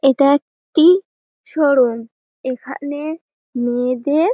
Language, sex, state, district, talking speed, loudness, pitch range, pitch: Bengali, female, West Bengal, Malda, 70 wpm, -17 LUFS, 255-300 Hz, 280 Hz